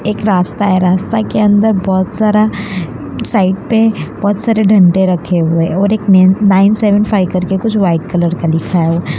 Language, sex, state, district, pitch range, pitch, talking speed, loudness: Hindi, female, Gujarat, Valsad, 180-210 Hz, 190 Hz, 185 wpm, -12 LUFS